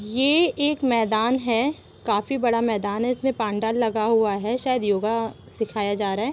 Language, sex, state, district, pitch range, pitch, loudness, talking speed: Hindi, female, Jharkhand, Sahebganj, 215-250 Hz, 230 Hz, -23 LUFS, 180 wpm